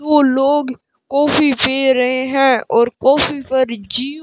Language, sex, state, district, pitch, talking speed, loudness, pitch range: Hindi, male, Rajasthan, Bikaner, 270 Hz, 155 wpm, -15 LUFS, 255-290 Hz